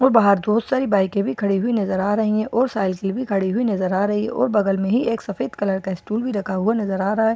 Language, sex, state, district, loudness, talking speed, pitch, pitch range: Hindi, female, Bihar, Katihar, -21 LUFS, 300 wpm, 210 Hz, 195-230 Hz